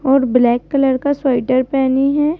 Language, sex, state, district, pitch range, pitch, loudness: Hindi, female, Madhya Pradesh, Bhopal, 255-280 Hz, 270 Hz, -15 LUFS